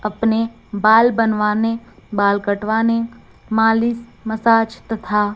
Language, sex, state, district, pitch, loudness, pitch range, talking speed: Hindi, female, Chhattisgarh, Raipur, 220 Hz, -18 LUFS, 210-230 Hz, 90 wpm